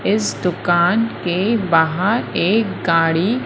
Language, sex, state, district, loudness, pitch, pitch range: Hindi, female, Madhya Pradesh, Umaria, -17 LUFS, 180 Hz, 165-220 Hz